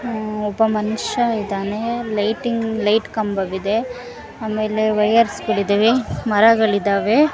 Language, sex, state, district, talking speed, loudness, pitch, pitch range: Kannada, female, Karnataka, Mysore, 115 wpm, -19 LUFS, 220 Hz, 210-230 Hz